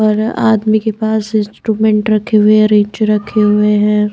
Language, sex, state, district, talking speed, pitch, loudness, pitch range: Hindi, female, Maharashtra, Washim, 175 wpm, 215 Hz, -12 LUFS, 210-220 Hz